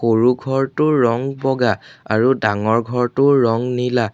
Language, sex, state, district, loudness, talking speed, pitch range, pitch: Assamese, male, Assam, Sonitpur, -17 LUFS, 130 wpm, 115-135 Hz, 125 Hz